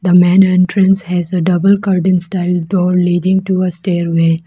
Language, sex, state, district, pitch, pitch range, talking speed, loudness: English, female, Arunachal Pradesh, Lower Dibang Valley, 180 Hz, 175-190 Hz, 175 wpm, -13 LUFS